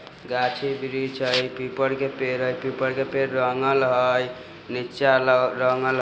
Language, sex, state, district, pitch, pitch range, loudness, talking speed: Bajjika, male, Bihar, Vaishali, 130 Hz, 125-135 Hz, -23 LUFS, 160 wpm